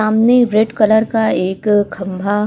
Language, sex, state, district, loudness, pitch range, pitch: Hindi, female, Uttarakhand, Tehri Garhwal, -14 LUFS, 205-220 Hz, 215 Hz